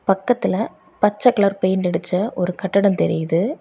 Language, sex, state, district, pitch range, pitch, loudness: Tamil, female, Tamil Nadu, Kanyakumari, 180-205 Hz, 195 Hz, -19 LUFS